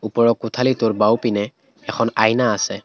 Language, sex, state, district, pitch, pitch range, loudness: Assamese, male, Assam, Kamrup Metropolitan, 115 Hz, 110-115 Hz, -18 LUFS